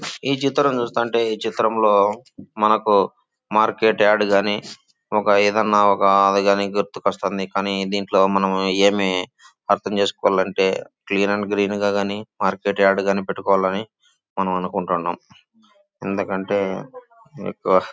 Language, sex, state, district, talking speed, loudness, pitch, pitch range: Telugu, male, Andhra Pradesh, Chittoor, 115 wpm, -20 LUFS, 100 Hz, 100-105 Hz